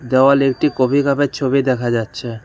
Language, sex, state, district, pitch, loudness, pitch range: Bengali, male, West Bengal, Cooch Behar, 130 Hz, -16 LUFS, 125-140 Hz